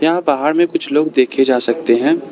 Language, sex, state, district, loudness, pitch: Hindi, male, Arunachal Pradesh, Lower Dibang Valley, -14 LUFS, 155 Hz